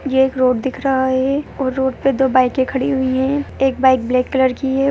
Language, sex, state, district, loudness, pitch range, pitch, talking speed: Hindi, male, Bihar, Gaya, -17 LUFS, 260-270 Hz, 265 Hz, 245 wpm